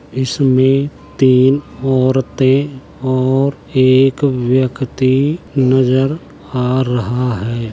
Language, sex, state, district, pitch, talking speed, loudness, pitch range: Hindi, male, Uttar Pradesh, Jalaun, 130 Hz, 80 wpm, -14 LUFS, 130-135 Hz